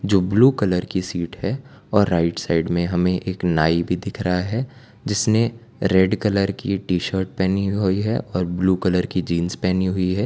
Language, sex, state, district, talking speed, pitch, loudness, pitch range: Hindi, male, Gujarat, Valsad, 200 wpm, 95 Hz, -21 LUFS, 90-105 Hz